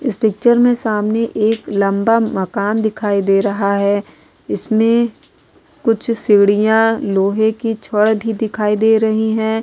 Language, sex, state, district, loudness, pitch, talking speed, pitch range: Hindi, female, Goa, North and South Goa, -15 LUFS, 220 Hz, 145 wpm, 205-225 Hz